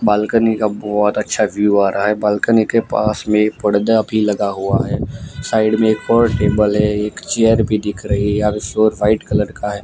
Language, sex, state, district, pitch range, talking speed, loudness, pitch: Hindi, male, Gujarat, Gandhinagar, 105-110 Hz, 225 wpm, -16 LUFS, 105 Hz